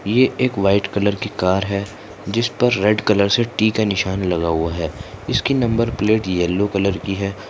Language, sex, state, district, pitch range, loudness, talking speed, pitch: Hindi, male, Maharashtra, Solapur, 95-110 Hz, -19 LUFS, 190 wpm, 100 Hz